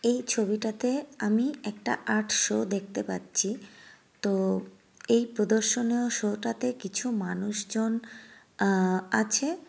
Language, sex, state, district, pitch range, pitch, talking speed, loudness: Bengali, female, West Bengal, Jhargram, 195-235 Hz, 215 Hz, 100 wpm, -28 LUFS